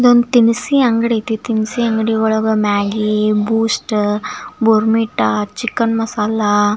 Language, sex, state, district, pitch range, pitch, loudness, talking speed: Kannada, female, Karnataka, Belgaum, 210-230 Hz, 220 Hz, -15 LUFS, 115 wpm